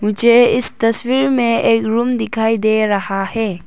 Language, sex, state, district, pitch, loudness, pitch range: Hindi, female, Arunachal Pradesh, Papum Pare, 225 Hz, -15 LUFS, 215-235 Hz